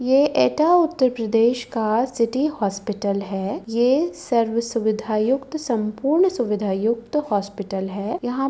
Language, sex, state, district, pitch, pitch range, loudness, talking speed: Hindi, female, Uttar Pradesh, Etah, 230 Hz, 210-270 Hz, -21 LUFS, 135 wpm